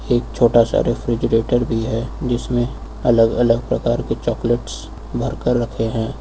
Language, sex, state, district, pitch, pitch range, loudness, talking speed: Hindi, male, Uttar Pradesh, Lucknow, 120 Hz, 115-120 Hz, -19 LUFS, 155 wpm